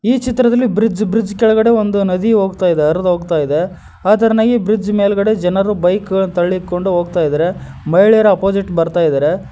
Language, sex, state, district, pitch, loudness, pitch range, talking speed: Kannada, male, Karnataka, Koppal, 200 Hz, -14 LUFS, 180-220 Hz, 150 wpm